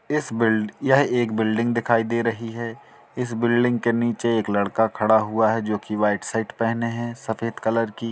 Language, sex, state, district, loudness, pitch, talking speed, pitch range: Hindi, male, Jharkhand, Jamtara, -22 LUFS, 115 Hz, 190 wpm, 110-120 Hz